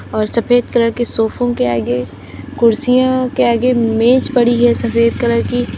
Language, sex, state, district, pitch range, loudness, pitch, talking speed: Hindi, female, Uttar Pradesh, Lalitpur, 225-245 Hz, -14 LUFS, 235 Hz, 165 wpm